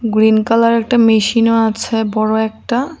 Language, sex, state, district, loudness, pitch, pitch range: Bengali, female, Tripura, West Tripura, -14 LUFS, 225 Hz, 220-230 Hz